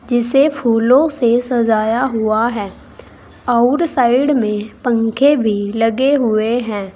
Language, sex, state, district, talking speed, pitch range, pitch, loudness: Hindi, female, Uttar Pradesh, Saharanpur, 120 wpm, 220-260 Hz, 235 Hz, -15 LUFS